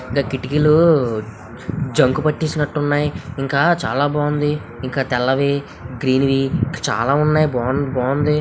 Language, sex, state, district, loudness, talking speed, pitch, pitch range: Telugu, male, Andhra Pradesh, Visakhapatnam, -18 LUFS, 95 wpm, 140 Hz, 130-150 Hz